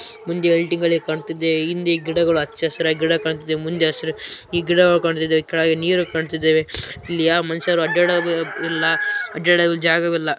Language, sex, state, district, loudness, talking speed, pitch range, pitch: Kannada, male, Karnataka, Raichur, -19 LUFS, 125 wpm, 160-170 Hz, 165 Hz